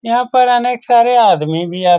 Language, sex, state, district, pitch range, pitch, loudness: Hindi, male, Bihar, Saran, 175-245 Hz, 235 Hz, -12 LUFS